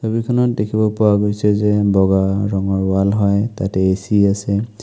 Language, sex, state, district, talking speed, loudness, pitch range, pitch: Assamese, male, Assam, Kamrup Metropolitan, 150 wpm, -16 LUFS, 95-105 Hz, 100 Hz